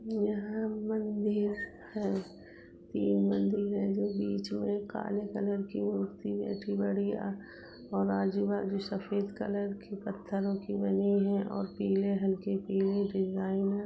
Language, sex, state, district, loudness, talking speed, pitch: Hindi, female, Uttar Pradesh, Budaun, -33 LUFS, 135 wpm, 200 Hz